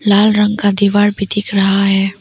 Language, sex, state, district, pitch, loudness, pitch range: Hindi, female, Arunachal Pradesh, Papum Pare, 200 Hz, -13 LUFS, 200-205 Hz